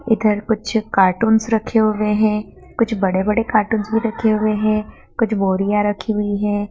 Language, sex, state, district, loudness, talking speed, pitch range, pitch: Hindi, female, Madhya Pradesh, Dhar, -18 LUFS, 170 wpm, 205-220 Hz, 215 Hz